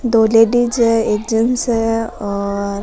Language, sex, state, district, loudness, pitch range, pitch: Rajasthani, female, Rajasthan, Nagaur, -15 LUFS, 210-235 Hz, 225 Hz